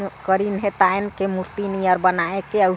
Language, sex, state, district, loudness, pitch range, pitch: Chhattisgarhi, female, Chhattisgarh, Sarguja, -21 LUFS, 185-200 Hz, 195 Hz